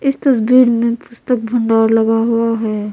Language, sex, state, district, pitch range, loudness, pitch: Hindi, female, Bihar, Patna, 225-245 Hz, -14 LUFS, 230 Hz